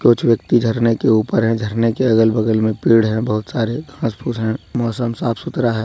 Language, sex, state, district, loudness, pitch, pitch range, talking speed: Hindi, male, Jharkhand, Deoghar, -17 LUFS, 115 Hz, 110-120 Hz, 205 wpm